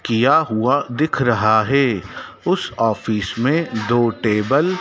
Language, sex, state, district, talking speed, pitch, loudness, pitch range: Hindi, male, Madhya Pradesh, Dhar, 135 wpm, 120 Hz, -18 LUFS, 110-140 Hz